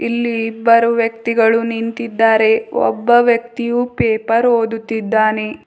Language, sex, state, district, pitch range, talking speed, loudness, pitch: Kannada, female, Karnataka, Bidar, 225-235 Hz, 85 wpm, -15 LUFS, 230 Hz